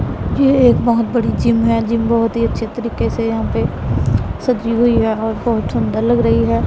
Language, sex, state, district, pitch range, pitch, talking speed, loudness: Hindi, female, Punjab, Pathankot, 220-235 Hz, 230 Hz, 205 wpm, -16 LUFS